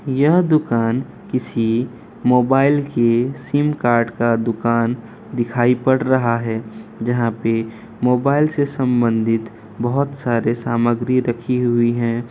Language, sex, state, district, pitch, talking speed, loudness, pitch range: Hindi, male, Bihar, Kishanganj, 120 Hz, 115 wpm, -18 LUFS, 115-130 Hz